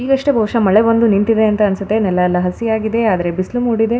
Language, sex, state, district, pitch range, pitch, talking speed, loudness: Kannada, female, Karnataka, Shimoga, 195-230 Hz, 220 Hz, 210 wpm, -15 LUFS